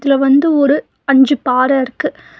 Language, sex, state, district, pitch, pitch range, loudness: Tamil, female, Tamil Nadu, Nilgiris, 275 Hz, 265-285 Hz, -13 LUFS